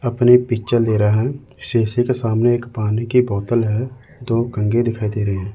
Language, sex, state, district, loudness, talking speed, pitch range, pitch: Hindi, male, Chandigarh, Chandigarh, -18 LUFS, 205 wpm, 110-125 Hz, 115 Hz